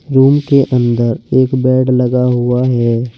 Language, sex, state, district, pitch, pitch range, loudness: Hindi, male, Uttar Pradesh, Saharanpur, 125 Hz, 120-130 Hz, -12 LUFS